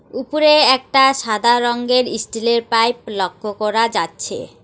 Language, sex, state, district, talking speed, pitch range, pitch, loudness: Bengali, female, West Bengal, Alipurduar, 115 wpm, 225-260 Hz, 235 Hz, -16 LUFS